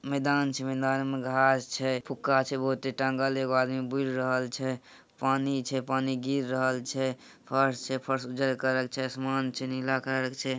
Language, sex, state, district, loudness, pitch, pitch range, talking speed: Hindi, male, Bihar, Samastipur, -29 LUFS, 130 Hz, 130-135 Hz, 125 wpm